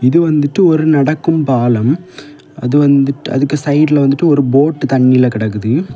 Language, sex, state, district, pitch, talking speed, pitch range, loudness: Tamil, male, Tamil Nadu, Kanyakumari, 140 Hz, 150 wpm, 130-155 Hz, -12 LUFS